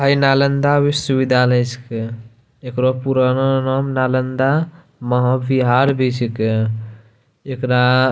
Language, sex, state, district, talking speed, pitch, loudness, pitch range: Angika, male, Bihar, Bhagalpur, 105 wpm, 130 Hz, -17 LUFS, 125-135 Hz